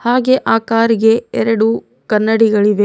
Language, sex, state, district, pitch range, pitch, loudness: Kannada, female, Karnataka, Bidar, 220-230 Hz, 225 Hz, -14 LUFS